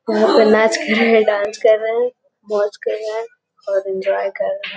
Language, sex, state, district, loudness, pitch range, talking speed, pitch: Hindi, female, Uttar Pradesh, Gorakhpur, -17 LUFS, 205-240 Hz, 240 wpm, 220 Hz